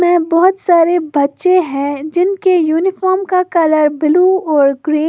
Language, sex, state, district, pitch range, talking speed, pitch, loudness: Hindi, female, Uttar Pradesh, Lalitpur, 305-365 Hz, 155 wpm, 345 Hz, -13 LUFS